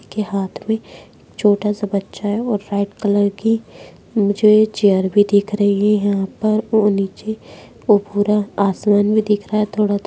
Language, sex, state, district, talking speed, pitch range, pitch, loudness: Hindi, female, Bihar, Muzaffarpur, 180 wpm, 200-215 Hz, 205 Hz, -17 LUFS